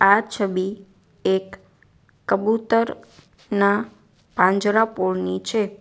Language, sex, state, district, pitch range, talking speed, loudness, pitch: Gujarati, female, Gujarat, Valsad, 190-220 Hz, 70 wpm, -21 LUFS, 200 Hz